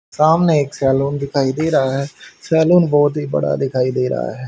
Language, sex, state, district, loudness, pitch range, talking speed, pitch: Hindi, female, Haryana, Charkhi Dadri, -16 LUFS, 135-160 Hz, 200 wpm, 140 Hz